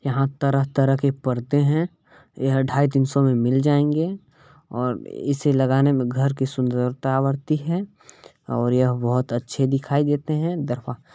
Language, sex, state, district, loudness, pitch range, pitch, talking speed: Hindi, male, Chhattisgarh, Balrampur, -22 LUFS, 130-145 Hz, 135 Hz, 150 wpm